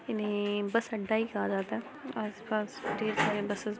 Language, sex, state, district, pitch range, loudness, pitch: Hindi, female, Bihar, Muzaffarpur, 205-225 Hz, -32 LUFS, 215 Hz